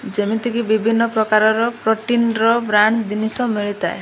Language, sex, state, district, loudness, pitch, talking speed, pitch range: Odia, female, Odisha, Malkangiri, -17 LUFS, 220 Hz, 135 wpm, 215-230 Hz